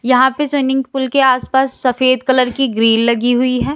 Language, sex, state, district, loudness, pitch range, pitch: Hindi, female, Uttar Pradesh, Lalitpur, -14 LUFS, 250-265 Hz, 260 Hz